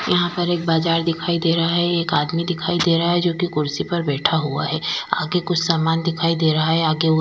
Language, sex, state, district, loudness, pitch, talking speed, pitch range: Hindi, female, Goa, North and South Goa, -19 LUFS, 165 Hz, 250 wpm, 160-175 Hz